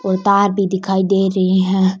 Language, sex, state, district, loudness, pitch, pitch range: Rajasthani, female, Rajasthan, Churu, -15 LUFS, 190 Hz, 190-195 Hz